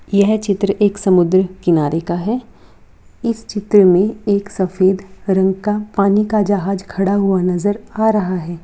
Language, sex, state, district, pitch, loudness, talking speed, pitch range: Hindi, female, Jharkhand, Sahebganj, 200 Hz, -16 LUFS, 160 wpm, 185-205 Hz